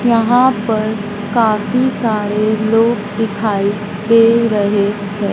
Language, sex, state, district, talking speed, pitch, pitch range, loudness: Hindi, female, Madhya Pradesh, Dhar, 100 wpm, 215 Hz, 205-230 Hz, -15 LUFS